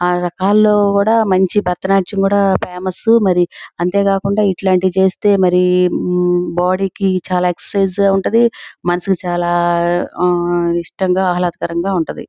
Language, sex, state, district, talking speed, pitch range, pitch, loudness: Telugu, female, Andhra Pradesh, Guntur, 115 wpm, 175-195 Hz, 185 Hz, -15 LUFS